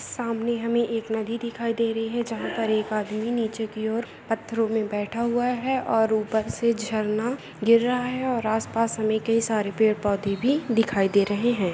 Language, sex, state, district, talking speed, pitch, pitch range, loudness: Hindi, female, Telangana, Nalgonda, 190 wpm, 225 Hz, 215-235 Hz, -25 LUFS